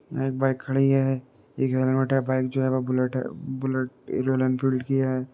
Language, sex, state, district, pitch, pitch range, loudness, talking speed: Hindi, male, Uttar Pradesh, Jalaun, 130 Hz, 130-135 Hz, -25 LUFS, 215 wpm